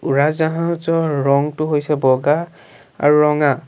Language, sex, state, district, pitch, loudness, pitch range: Assamese, male, Assam, Sonitpur, 150 Hz, -17 LUFS, 140-160 Hz